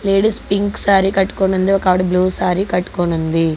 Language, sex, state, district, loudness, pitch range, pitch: Telugu, female, Andhra Pradesh, Guntur, -16 LUFS, 180-195 Hz, 190 Hz